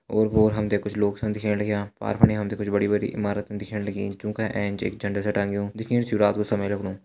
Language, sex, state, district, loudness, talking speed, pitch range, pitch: Hindi, male, Uttarakhand, Uttarkashi, -25 LUFS, 240 wpm, 100-105 Hz, 105 Hz